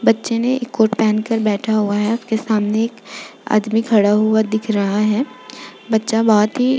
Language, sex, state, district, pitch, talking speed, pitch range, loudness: Hindi, female, Uttar Pradesh, Jalaun, 220 Hz, 195 wpm, 215-230 Hz, -17 LUFS